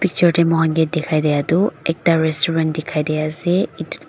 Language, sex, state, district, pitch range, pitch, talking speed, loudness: Nagamese, female, Nagaland, Dimapur, 155-170 Hz, 160 Hz, 160 wpm, -18 LUFS